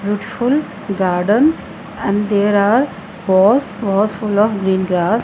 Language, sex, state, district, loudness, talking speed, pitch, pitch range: English, female, Punjab, Fazilka, -16 LUFS, 125 wpm, 205 Hz, 195-220 Hz